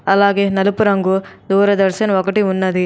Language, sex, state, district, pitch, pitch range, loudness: Telugu, female, Telangana, Adilabad, 195 Hz, 190-200 Hz, -15 LUFS